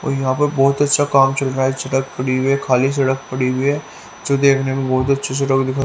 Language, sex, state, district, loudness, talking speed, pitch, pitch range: Hindi, male, Haryana, Rohtak, -17 LUFS, 245 wpm, 135 Hz, 130-140 Hz